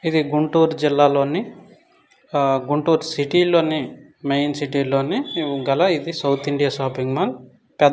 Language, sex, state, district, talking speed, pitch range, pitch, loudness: Telugu, male, Andhra Pradesh, Guntur, 120 wpm, 140-160 Hz, 145 Hz, -20 LUFS